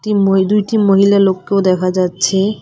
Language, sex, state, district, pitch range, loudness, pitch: Bengali, female, West Bengal, Cooch Behar, 185-200 Hz, -13 LUFS, 195 Hz